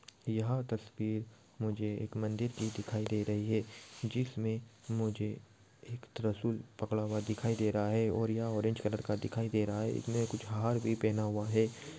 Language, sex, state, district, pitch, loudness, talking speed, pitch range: Hindi, male, Maharashtra, Dhule, 110 Hz, -36 LUFS, 175 wpm, 105-115 Hz